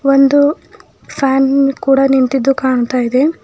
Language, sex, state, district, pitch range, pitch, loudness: Kannada, female, Karnataka, Bidar, 265-275 Hz, 270 Hz, -13 LUFS